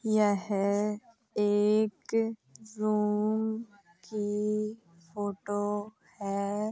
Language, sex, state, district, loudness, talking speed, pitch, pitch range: Hindi, female, Uttar Pradesh, Hamirpur, -30 LUFS, 55 wpm, 210 Hz, 205-215 Hz